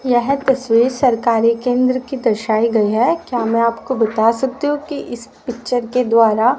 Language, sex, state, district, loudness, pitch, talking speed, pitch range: Hindi, female, Haryana, Rohtak, -16 LUFS, 240 Hz, 175 wpm, 230-260 Hz